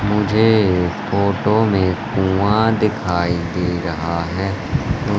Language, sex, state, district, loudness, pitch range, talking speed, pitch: Hindi, male, Madhya Pradesh, Katni, -18 LUFS, 90-105 Hz, 95 wpm, 95 Hz